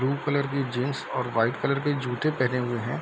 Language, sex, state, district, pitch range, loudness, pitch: Hindi, male, Bihar, Darbhanga, 125-140 Hz, -27 LUFS, 130 Hz